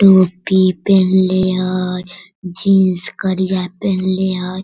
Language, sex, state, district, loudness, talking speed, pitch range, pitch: Hindi, female, Bihar, Sitamarhi, -15 LUFS, 90 wpm, 185-190 Hz, 185 Hz